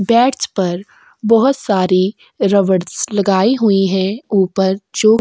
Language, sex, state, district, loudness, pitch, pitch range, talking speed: Hindi, female, Chhattisgarh, Kabirdham, -15 LUFS, 195 Hz, 190-220 Hz, 115 wpm